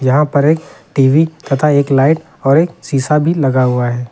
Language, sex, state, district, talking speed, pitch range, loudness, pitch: Hindi, male, Uttar Pradesh, Lucknow, 205 wpm, 135-160 Hz, -13 LUFS, 145 Hz